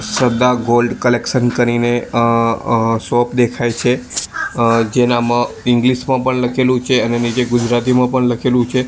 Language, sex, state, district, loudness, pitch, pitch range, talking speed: Gujarati, male, Gujarat, Gandhinagar, -15 LUFS, 120 Hz, 120-125 Hz, 150 wpm